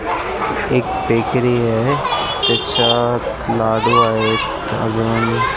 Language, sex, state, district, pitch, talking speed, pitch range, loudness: Marathi, male, Maharashtra, Mumbai Suburban, 115 Hz, 95 wpm, 110-120 Hz, -16 LUFS